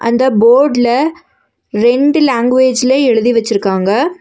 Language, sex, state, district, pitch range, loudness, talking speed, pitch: Tamil, female, Tamil Nadu, Nilgiris, 230-265 Hz, -11 LUFS, 85 wpm, 245 Hz